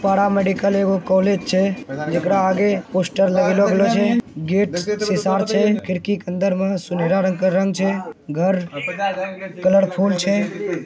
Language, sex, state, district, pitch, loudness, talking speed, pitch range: Angika, male, Bihar, Begusarai, 195 Hz, -19 LUFS, 150 wpm, 185-200 Hz